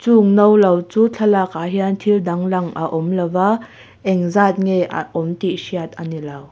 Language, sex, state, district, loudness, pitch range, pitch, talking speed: Mizo, female, Mizoram, Aizawl, -17 LUFS, 175-205 Hz, 185 Hz, 200 wpm